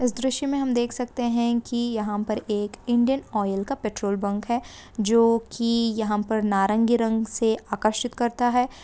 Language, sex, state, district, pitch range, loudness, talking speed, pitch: Hindi, female, Andhra Pradesh, Guntur, 215-245 Hz, -24 LUFS, 185 wpm, 230 Hz